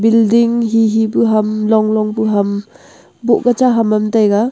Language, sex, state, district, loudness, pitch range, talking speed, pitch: Wancho, female, Arunachal Pradesh, Longding, -13 LUFS, 215-230 Hz, 175 wpm, 220 Hz